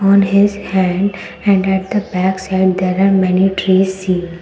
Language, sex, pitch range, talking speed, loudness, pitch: English, female, 185-195 Hz, 165 wpm, -14 LUFS, 190 Hz